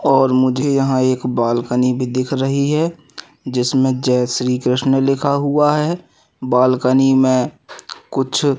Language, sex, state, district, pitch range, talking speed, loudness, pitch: Hindi, male, Madhya Pradesh, Katni, 125-140 Hz, 140 wpm, -16 LUFS, 130 Hz